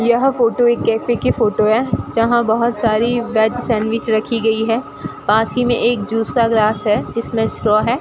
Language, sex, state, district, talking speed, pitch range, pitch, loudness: Hindi, female, Rajasthan, Bikaner, 195 wpm, 220-235 Hz, 230 Hz, -16 LUFS